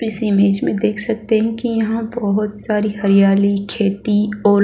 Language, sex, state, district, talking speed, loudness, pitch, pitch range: Hindi, female, Bihar, Kishanganj, 180 wpm, -17 LUFS, 210 Hz, 200-220 Hz